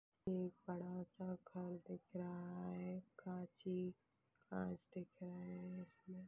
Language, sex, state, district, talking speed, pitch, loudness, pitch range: Hindi, female, Chhattisgarh, Balrampur, 135 wpm, 180 Hz, -50 LUFS, 180-185 Hz